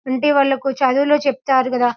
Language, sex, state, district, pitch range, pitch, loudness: Telugu, female, Telangana, Karimnagar, 260-280 Hz, 270 Hz, -17 LUFS